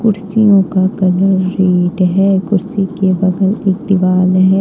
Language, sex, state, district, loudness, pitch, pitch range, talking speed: Hindi, female, Jharkhand, Ranchi, -13 LUFS, 190 Hz, 185-195 Hz, 130 wpm